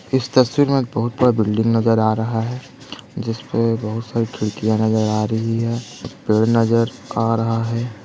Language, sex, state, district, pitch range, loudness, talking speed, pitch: Hindi, male, Chhattisgarh, Bastar, 110-120 Hz, -19 LUFS, 180 wpm, 115 Hz